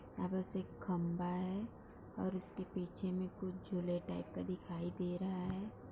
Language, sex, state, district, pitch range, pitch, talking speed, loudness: Hindi, female, Bihar, Darbhanga, 175-185 Hz, 185 Hz, 150 wpm, -42 LUFS